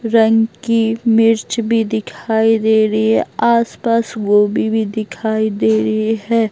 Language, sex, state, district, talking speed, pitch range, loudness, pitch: Hindi, female, Bihar, Patna, 140 wpm, 215-225 Hz, -15 LUFS, 220 Hz